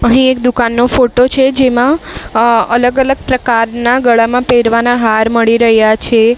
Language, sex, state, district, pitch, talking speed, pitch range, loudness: Gujarati, female, Maharashtra, Mumbai Suburban, 240 Hz, 150 wpm, 230-250 Hz, -10 LUFS